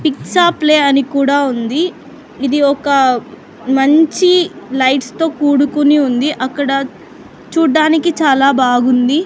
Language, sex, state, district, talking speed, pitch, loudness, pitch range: Telugu, female, Andhra Pradesh, Sri Satya Sai, 105 wpm, 280 Hz, -13 LUFS, 265-310 Hz